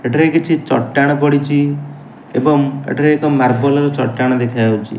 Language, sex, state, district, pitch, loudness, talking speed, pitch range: Odia, male, Odisha, Nuapada, 140 Hz, -14 LUFS, 130 wpm, 125-145 Hz